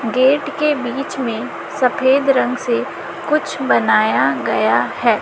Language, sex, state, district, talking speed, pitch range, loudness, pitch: Hindi, female, Chhattisgarh, Raipur, 125 wpm, 250-290 Hz, -17 LUFS, 270 Hz